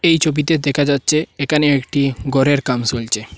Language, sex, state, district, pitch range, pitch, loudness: Bengali, male, Assam, Hailakandi, 130-150 Hz, 140 Hz, -17 LUFS